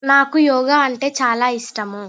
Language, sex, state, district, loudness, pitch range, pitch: Telugu, female, Andhra Pradesh, Chittoor, -16 LUFS, 235-275 Hz, 260 Hz